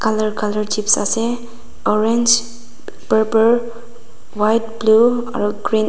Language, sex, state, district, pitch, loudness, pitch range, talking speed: Nagamese, female, Nagaland, Dimapur, 225 Hz, -17 LUFS, 215-235 Hz, 100 wpm